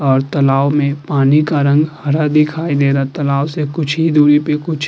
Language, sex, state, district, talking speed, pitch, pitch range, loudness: Hindi, male, Uttar Pradesh, Muzaffarnagar, 220 wpm, 145 Hz, 140-150 Hz, -14 LUFS